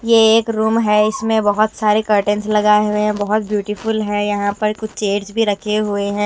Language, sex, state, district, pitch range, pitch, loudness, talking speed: Hindi, female, Himachal Pradesh, Shimla, 205-220 Hz, 210 Hz, -16 LUFS, 210 wpm